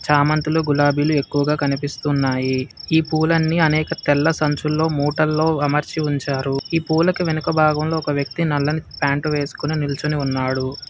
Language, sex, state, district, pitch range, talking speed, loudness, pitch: Telugu, male, Telangana, Hyderabad, 145-160 Hz, 125 wpm, -19 LUFS, 150 Hz